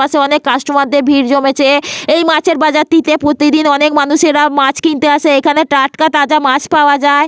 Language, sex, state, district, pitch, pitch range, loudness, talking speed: Bengali, female, Jharkhand, Sahebganj, 295 Hz, 285-305 Hz, -10 LUFS, 175 wpm